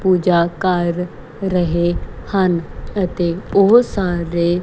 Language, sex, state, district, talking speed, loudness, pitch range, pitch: Punjabi, female, Punjab, Kapurthala, 90 wpm, -17 LUFS, 170-190 Hz, 180 Hz